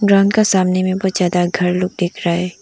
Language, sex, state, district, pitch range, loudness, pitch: Hindi, female, Arunachal Pradesh, Lower Dibang Valley, 180-195 Hz, -16 LUFS, 185 Hz